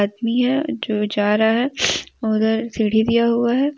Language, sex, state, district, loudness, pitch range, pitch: Hindi, female, Jharkhand, Deoghar, -19 LUFS, 215-245 Hz, 230 Hz